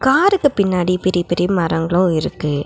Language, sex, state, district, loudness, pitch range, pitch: Tamil, female, Tamil Nadu, Nilgiris, -17 LUFS, 170-200 Hz, 180 Hz